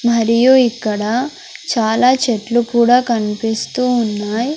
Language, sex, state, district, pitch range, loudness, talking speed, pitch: Telugu, female, Andhra Pradesh, Sri Satya Sai, 220-245 Hz, -15 LUFS, 90 wpm, 235 Hz